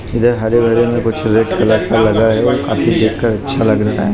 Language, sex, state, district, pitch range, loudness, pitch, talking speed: Hindi, male, Maharashtra, Mumbai Suburban, 110-120 Hz, -13 LUFS, 110 Hz, 215 wpm